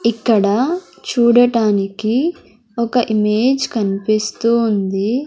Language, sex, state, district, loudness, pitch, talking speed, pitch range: Telugu, female, Andhra Pradesh, Sri Satya Sai, -16 LUFS, 230 Hz, 70 wpm, 215-245 Hz